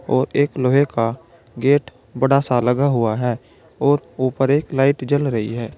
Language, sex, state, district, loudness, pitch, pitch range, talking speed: Hindi, male, Uttar Pradesh, Saharanpur, -19 LUFS, 135 Hz, 120-140 Hz, 175 wpm